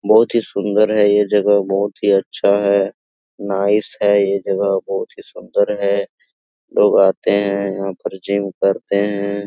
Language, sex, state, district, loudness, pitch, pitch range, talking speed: Hindi, male, Jharkhand, Sahebganj, -17 LUFS, 100 Hz, 100-105 Hz, 165 wpm